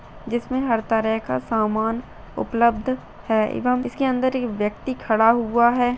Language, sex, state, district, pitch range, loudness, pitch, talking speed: Hindi, female, Bihar, Madhepura, 220-250 Hz, -22 LUFS, 235 Hz, 150 wpm